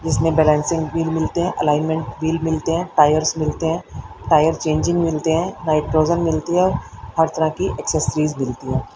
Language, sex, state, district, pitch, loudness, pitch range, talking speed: Hindi, female, Haryana, Charkhi Dadri, 160 Hz, -19 LUFS, 155-165 Hz, 165 wpm